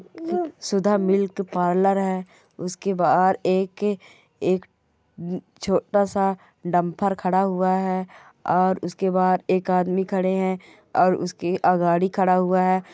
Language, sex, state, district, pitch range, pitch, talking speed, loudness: Hindi, female, Bihar, Bhagalpur, 180-195 Hz, 185 Hz, 100 wpm, -22 LUFS